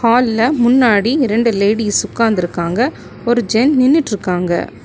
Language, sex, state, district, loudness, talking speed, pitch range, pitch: Tamil, female, Tamil Nadu, Nilgiris, -14 LUFS, 110 wpm, 205-250 Hz, 230 Hz